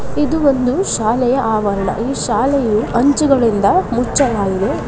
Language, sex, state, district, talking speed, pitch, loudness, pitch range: Kannada, female, Karnataka, Dakshina Kannada, 110 wpm, 245 Hz, -15 LUFS, 215-275 Hz